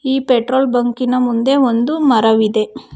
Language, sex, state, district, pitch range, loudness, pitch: Kannada, female, Karnataka, Bangalore, 235-265 Hz, -14 LUFS, 250 Hz